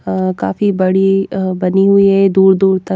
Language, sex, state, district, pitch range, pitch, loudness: Hindi, female, Haryana, Jhajjar, 185-195 Hz, 190 Hz, -12 LUFS